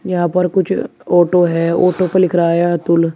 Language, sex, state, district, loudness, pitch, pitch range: Hindi, male, Uttar Pradesh, Shamli, -14 LUFS, 175 Hz, 170-180 Hz